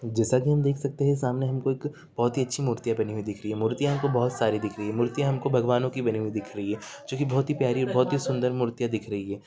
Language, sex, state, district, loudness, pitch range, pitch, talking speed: Hindi, male, Jharkhand, Jamtara, -27 LUFS, 110-135 Hz, 125 Hz, 290 wpm